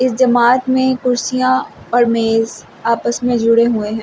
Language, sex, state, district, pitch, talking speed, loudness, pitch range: Hindi, female, Delhi, New Delhi, 240 Hz, 165 wpm, -15 LUFS, 230-255 Hz